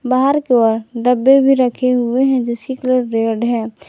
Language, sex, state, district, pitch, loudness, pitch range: Hindi, female, Jharkhand, Garhwa, 250 Hz, -15 LUFS, 235-260 Hz